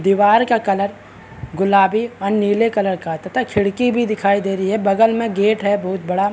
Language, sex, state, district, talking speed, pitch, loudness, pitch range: Hindi, male, Bihar, Araria, 210 wpm, 200 Hz, -17 LUFS, 195-220 Hz